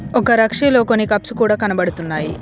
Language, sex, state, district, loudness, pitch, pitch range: Telugu, female, Telangana, Komaram Bheem, -16 LUFS, 220 Hz, 185-235 Hz